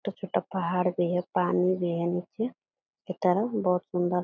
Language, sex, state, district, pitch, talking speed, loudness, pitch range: Hindi, female, Bihar, Purnia, 180 Hz, 185 wpm, -28 LUFS, 180-195 Hz